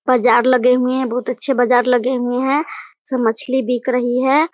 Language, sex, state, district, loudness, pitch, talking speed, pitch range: Hindi, female, Bihar, Muzaffarpur, -16 LUFS, 250 Hz, 210 wpm, 245-265 Hz